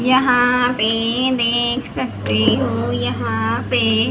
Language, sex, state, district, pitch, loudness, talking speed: Hindi, female, Haryana, Jhajjar, 215 Hz, -17 LUFS, 115 wpm